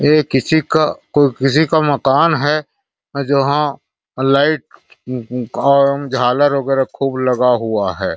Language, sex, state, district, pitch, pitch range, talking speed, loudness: Hindi, male, Chhattisgarh, Raigarh, 140 Hz, 130-150 Hz, 130 wpm, -15 LUFS